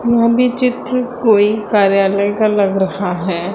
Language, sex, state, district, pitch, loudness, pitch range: Hindi, female, Uttar Pradesh, Lucknow, 205 Hz, -14 LUFS, 195-235 Hz